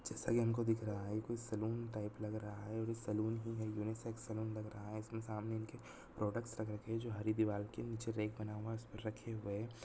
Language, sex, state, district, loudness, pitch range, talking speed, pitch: Hindi, male, Chhattisgarh, Sarguja, -42 LUFS, 105-115 Hz, 250 wpm, 110 Hz